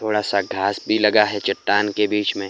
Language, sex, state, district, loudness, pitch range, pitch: Hindi, male, Himachal Pradesh, Shimla, -19 LUFS, 100-105 Hz, 105 Hz